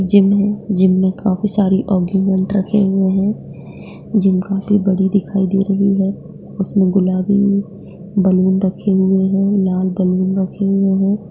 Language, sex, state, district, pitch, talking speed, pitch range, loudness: Hindi, female, Bihar, Saharsa, 195 Hz, 150 wpm, 190-200 Hz, -16 LUFS